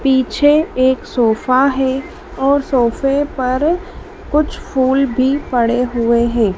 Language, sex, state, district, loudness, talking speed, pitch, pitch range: Hindi, female, Madhya Pradesh, Dhar, -15 LUFS, 120 wpm, 260 Hz, 245-285 Hz